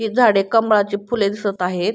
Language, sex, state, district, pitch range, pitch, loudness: Marathi, female, Maharashtra, Pune, 200-220 Hz, 205 Hz, -18 LUFS